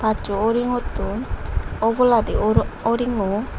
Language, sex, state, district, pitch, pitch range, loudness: Chakma, female, Tripura, Unakoti, 225 Hz, 215-240 Hz, -21 LUFS